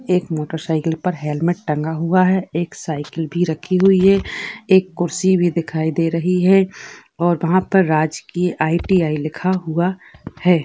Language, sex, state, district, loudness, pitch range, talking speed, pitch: Hindi, female, Uttar Pradesh, Etah, -18 LUFS, 160-185 Hz, 165 wpm, 175 Hz